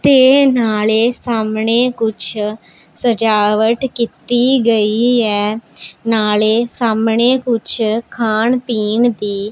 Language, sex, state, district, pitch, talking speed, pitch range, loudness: Punjabi, female, Punjab, Pathankot, 225 Hz, 90 wpm, 215-240 Hz, -14 LUFS